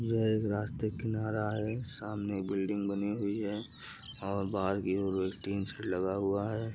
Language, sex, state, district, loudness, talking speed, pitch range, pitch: Hindi, male, Uttar Pradesh, Gorakhpur, -34 LUFS, 160 wpm, 100-110 Hz, 105 Hz